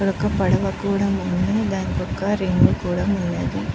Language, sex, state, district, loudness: Telugu, female, Andhra Pradesh, Chittoor, -21 LUFS